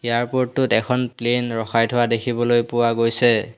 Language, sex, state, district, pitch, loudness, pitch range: Assamese, male, Assam, Hailakandi, 120 Hz, -19 LUFS, 115-120 Hz